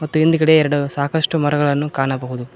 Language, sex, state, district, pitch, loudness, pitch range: Kannada, male, Karnataka, Koppal, 145 Hz, -17 LUFS, 140-155 Hz